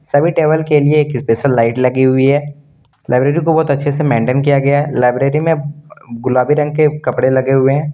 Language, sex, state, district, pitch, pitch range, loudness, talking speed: Hindi, male, Jharkhand, Deoghar, 145 Hz, 130-150 Hz, -13 LUFS, 210 wpm